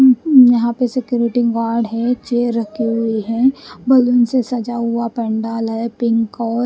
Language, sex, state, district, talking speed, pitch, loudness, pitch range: Hindi, female, Haryana, Rohtak, 155 wpm, 235 Hz, -16 LUFS, 230-245 Hz